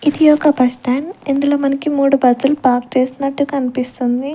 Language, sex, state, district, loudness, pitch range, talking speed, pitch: Telugu, female, Andhra Pradesh, Sri Satya Sai, -15 LUFS, 255-285 Hz, 140 wpm, 275 Hz